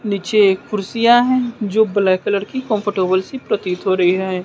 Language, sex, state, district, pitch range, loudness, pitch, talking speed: Hindi, male, Bihar, West Champaran, 190-230 Hz, -17 LUFS, 205 Hz, 175 wpm